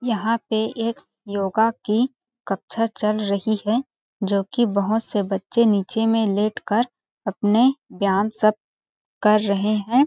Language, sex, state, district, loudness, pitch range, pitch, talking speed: Hindi, female, Chhattisgarh, Balrampur, -22 LUFS, 205-230 Hz, 220 Hz, 135 wpm